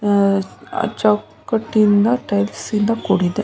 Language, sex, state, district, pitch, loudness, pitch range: Kannada, female, Karnataka, Mysore, 205 Hz, -18 LUFS, 195-220 Hz